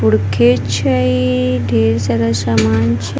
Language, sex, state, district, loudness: Maithili, female, Bihar, Madhepura, -14 LUFS